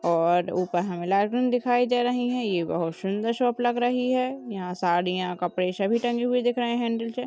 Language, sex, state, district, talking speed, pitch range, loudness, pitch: Hindi, female, Chhattisgarh, Bastar, 205 wpm, 180-245 Hz, -25 LUFS, 230 Hz